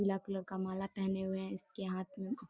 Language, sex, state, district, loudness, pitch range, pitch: Hindi, female, Bihar, Darbhanga, -40 LUFS, 190-195 Hz, 190 Hz